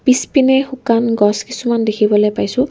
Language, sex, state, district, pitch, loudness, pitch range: Assamese, female, Assam, Kamrup Metropolitan, 235 Hz, -15 LUFS, 215-260 Hz